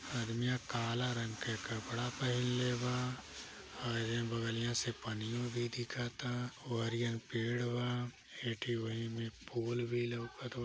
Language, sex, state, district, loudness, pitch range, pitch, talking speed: Hindi, male, Uttar Pradesh, Deoria, -39 LUFS, 115-125 Hz, 120 Hz, 140 wpm